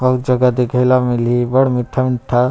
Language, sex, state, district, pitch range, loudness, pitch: Chhattisgarhi, male, Chhattisgarh, Rajnandgaon, 120-130 Hz, -15 LUFS, 125 Hz